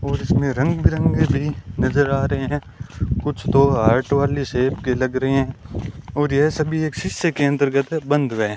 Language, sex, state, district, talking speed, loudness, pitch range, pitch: Hindi, male, Rajasthan, Bikaner, 190 wpm, -20 LUFS, 130-145 Hz, 140 Hz